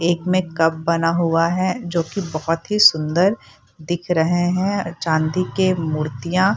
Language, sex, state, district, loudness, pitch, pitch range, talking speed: Hindi, female, Bihar, Purnia, -19 LUFS, 170 Hz, 165-185 Hz, 175 wpm